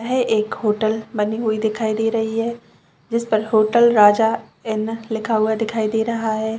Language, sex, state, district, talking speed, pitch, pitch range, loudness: Hindi, female, Chhattisgarh, Bastar, 180 wpm, 220 Hz, 215-225 Hz, -19 LUFS